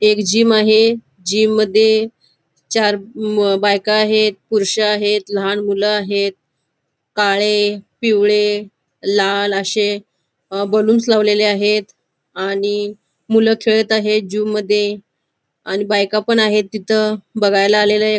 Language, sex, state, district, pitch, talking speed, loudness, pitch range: Marathi, female, Goa, North and South Goa, 210 Hz, 115 wpm, -15 LUFS, 200-215 Hz